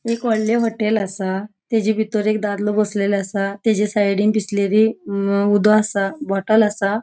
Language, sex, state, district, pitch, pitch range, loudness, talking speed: Konkani, female, Goa, North and South Goa, 210 Hz, 200-215 Hz, -19 LUFS, 155 wpm